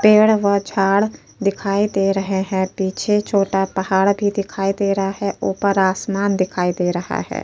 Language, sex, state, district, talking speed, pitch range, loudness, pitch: Hindi, female, Uttar Pradesh, Jyotiba Phule Nagar, 170 wpm, 190-200 Hz, -19 LUFS, 195 Hz